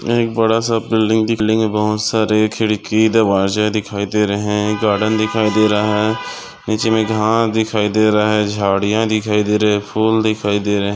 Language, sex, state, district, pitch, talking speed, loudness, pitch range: Hindi, male, Maharashtra, Aurangabad, 110 Hz, 190 wpm, -16 LUFS, 105-110 Hz